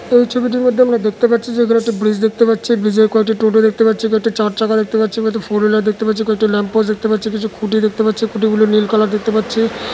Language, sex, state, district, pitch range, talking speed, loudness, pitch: Bengali, male, West Bengal, Dakshin Dinajpur, 215-225 Hz, 290 wpm, -15 LUFS, 220 Hz